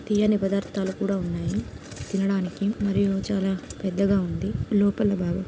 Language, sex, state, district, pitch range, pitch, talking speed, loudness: Telugu, female, Telangana, Nalgonda, 185-200 Hz, 195 Hz, 120 wpm, -25 LUFS